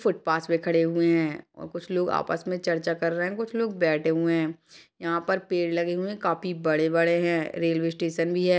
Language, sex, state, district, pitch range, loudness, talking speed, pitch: Hindi, female, Chhattisgarh, Sarguja, 165-180 Hz, -26 LUFS, 215 wpm, 170 Hz